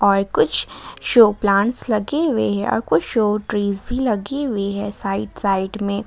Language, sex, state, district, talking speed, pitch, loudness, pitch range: Hindi, female, Jharkhand, Ranchi, 180 wpm, 205 Hz, -19 LUFS, 195-220 Hz